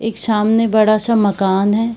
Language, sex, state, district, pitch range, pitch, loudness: Hindi, female, Bihar, Purnia, 205-225 Hz, 215 Hz, -14 LUFS